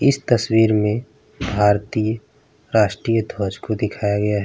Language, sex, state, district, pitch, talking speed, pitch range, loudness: Hindi, male, Bihar, Vaishali, 110 Hz, 135 wpm, 105-115 Hz, -20 LUFS